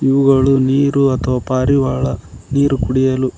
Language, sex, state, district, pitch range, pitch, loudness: Kannada, male, Karnataka, Koppal, 130-135 Hz, 130 Hz, -15 LUFS